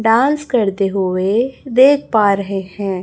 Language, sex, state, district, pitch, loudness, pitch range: Hindi, male, Chhattisgarh, Raipur, 210 Hz, -15 LUFS, 195-255 Hz